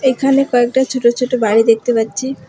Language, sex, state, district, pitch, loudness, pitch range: Bengali, female, West Bengal, Alipurduar, 250 Hz, -14 LUFS, 235-265 Hz